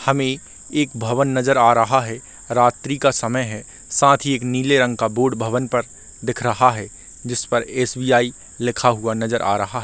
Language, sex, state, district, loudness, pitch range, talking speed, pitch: Hindi, male, Chhattisgarh, Rajnandgaon, -19 LUFS, 115-130 Hz, 190 wpm, 125 Hz